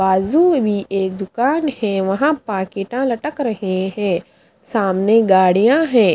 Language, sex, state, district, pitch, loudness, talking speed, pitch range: Hindi, female, Bihar, Kaimur, 210 Hz, -17 LUFS, 135 wpm, 190-255 Hz